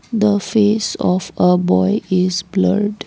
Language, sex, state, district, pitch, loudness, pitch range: English, female, Assam, Kamrup Metropolitan, 190 Hz, -16 LUFS, 180-210 Hz